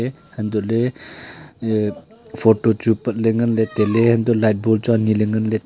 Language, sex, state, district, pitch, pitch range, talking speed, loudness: Wancho, male, Arunachal Pradesh, Longding, 110 Hz, 110-115 Hz, 170 wpm, -19 LUFS